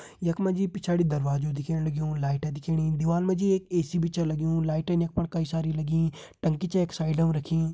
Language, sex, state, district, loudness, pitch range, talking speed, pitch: Hindi, male, Uttarakhand, Uttarkashi, -27 LUFS, 155-175 Hz, 215 wpm, 165 Hz